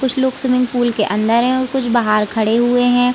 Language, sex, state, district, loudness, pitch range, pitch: Hindi, female, Chhattisgarh, Raigarh, -16 LUFS, 225-255 Hz, 245 Hz